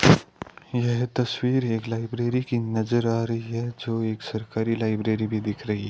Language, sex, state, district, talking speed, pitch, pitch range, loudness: Hindi, male, Rajasthan, Bikaner, 165 wpm, 115 Hz, 110-120 Hz, -26 LUFS